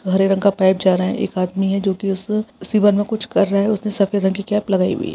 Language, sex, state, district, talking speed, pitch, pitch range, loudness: Hindi, male, Uttarakhand, Tehri Garhwal, 315 wpm, 200 Hz, 190-205 Hz, -18 LUFS